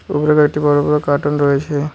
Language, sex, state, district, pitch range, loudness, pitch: Bengali, male, West Bengal, Cooch Behar, 145-150 Hz, -15 LUFS, 145 Hz